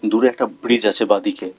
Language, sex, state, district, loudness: Bengali, male, West Bengal, Alipurduar, -17 LUFS